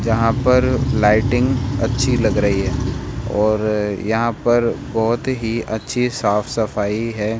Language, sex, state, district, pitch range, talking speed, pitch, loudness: Hindi, male, Rajasthan, Jaipur, 105-125 Hz, 120 wpm, 115 Hz, -18 LUFS